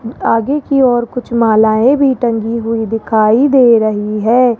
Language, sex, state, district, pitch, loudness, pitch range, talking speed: Hindi, male, Rajasthan, Jaipur, 230 Hz, -12 LUFS, 220-250 Hz, 155 wpm